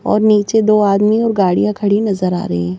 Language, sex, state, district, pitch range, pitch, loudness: Hindi, female, Madhya Pradesh, Bhopal, 185-215 Hz, 205 Hz, -14 LUFS